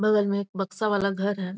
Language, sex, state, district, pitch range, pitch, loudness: Hindi, female, Bihar, Muzaffarpur, 195-205 Hz, 200 Hz, -26 LUFS